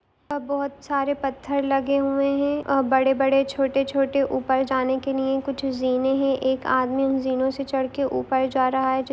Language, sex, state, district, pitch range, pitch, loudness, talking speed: Hindi, female, Chhattisgarh, Bilaspur, 265-275 Hz, 270 Hz, -23 LUFS, 180 wpm